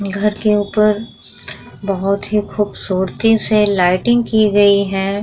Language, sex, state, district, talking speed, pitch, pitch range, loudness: Hindi, female, Bihar, Vaishali, 125 wpm, 205 Hz, 200-210 Hz, -15 LUFS